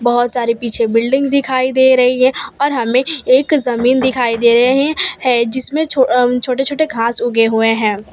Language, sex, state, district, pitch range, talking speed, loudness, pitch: Hindi, female, Gujarat, Valsad, 235-270 Hz, 175 wpm, -13 LUFS, 255 Hz